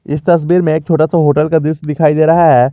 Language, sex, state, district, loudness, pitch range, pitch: Hindi, male, Jharkhand, Garhwa, -11 LUFS, 150-165 Hz, 155 Hz